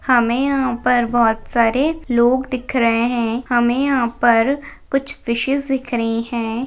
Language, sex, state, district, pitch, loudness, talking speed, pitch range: Hindi, female, Maharashtra, Pune, 245 Hz, -18 LUFS, 135 wpm, 235-270 Hz